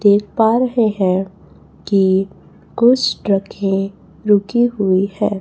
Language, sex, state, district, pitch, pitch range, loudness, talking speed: Hindi, female, Chhattisgarh, Raipur, 205 Hz, 195-220 Hz, -16 LUFS, 120 wpm